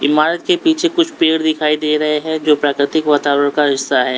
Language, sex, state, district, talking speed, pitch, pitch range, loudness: Hindi, male, Uttar Pradesh, Lalitpur, 215 wpm, 150 Hz, 145-160 Hz, -15 LUFS